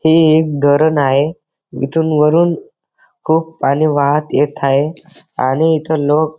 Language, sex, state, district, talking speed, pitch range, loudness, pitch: Marathi, male, Maharashtra, Dhule, 140 wpm, 145-160 Hz, -14 LUFS, 155 Hz